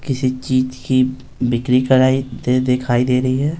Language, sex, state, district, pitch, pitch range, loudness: Hindi, male, Bihar, Patna, 130 Hz, 125-130 Hz, -17 LUFS